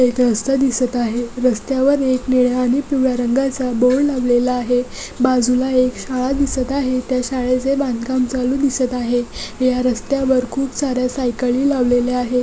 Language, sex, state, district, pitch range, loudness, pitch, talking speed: Marathi, female, Maharashtra, Dhule, 250-265 Hz, -18 LUFS, 255 Hz, 150 wpm